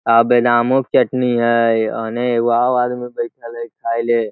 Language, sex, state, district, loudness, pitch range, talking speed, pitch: Hindi, male, Bihar, Lakhisarai, -16 LUFS, 115-125 Hz, 155 wpm, 120 Hz